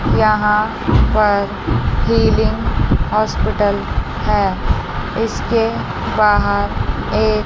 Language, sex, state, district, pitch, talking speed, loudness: Hindi, female, Chandigarh, Chandigarh, 205 Hz, 65 wpm, -17 LUFS